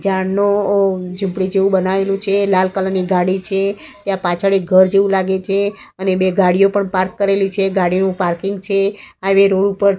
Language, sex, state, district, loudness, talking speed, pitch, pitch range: Gujarati, female, Gujarat, Gandhinagar, -16 LUFS, 175 wpm, 195 Hz, 190-195 Hz